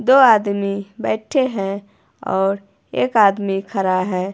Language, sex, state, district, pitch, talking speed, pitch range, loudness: Hindi, female, Himachal Pradesh, Shimla, 200 Hz, 125 wpm, 195-215 Hz, -18 LUFS